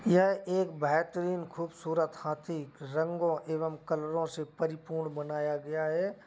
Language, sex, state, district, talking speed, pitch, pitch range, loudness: Hindi, male, Uttar Pradesh, Jalaun, 125 wpm, 160 Hz, 155-170 Hz, -33 LUFS